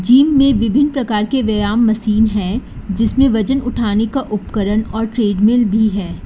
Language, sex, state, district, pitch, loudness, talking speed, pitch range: Hindi, female, Karnataka, Bangalore, 225 Hz, -15 LUFS, 170 wpm, 210-250 Hz